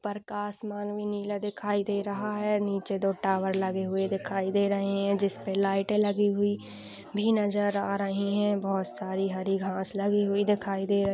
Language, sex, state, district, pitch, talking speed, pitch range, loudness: Hindi, female, Uttar Pradesh, Budaun, 200 Hz, 195 wpm, 195-205 Hz, -29 LUFS